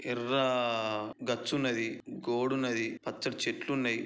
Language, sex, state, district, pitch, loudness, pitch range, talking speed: Telugu, female, Andhra Pradesh, Chittoor, 120 Hz, -32 LUFS, 115-130 Hz, 120 wpm